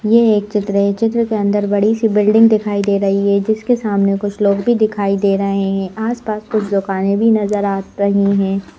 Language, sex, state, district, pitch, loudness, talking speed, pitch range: Hindi, female, Madhya Pradesh, Bhopal, 205 Hz, -15 LUFS, 210 wpm, 200-215 Hz